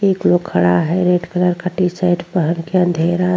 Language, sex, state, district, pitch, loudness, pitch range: Hindi, female, Uttar Pradesh, Jyotiba Phule Nagar, 180 Hz, -16 LUFS, 170-180 Hz